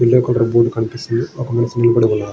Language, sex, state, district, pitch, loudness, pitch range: Telugu, male, Andhra Pradesh, Srikakulam, 115 Hz, -16 LUFS, 115-120 Hz